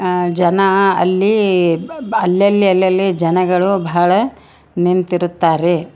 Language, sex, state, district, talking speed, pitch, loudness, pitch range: Kannada, female, Karnataka, Koppal, 80 wpm, 180 Hz, -14 LUFS, 175-195 Hz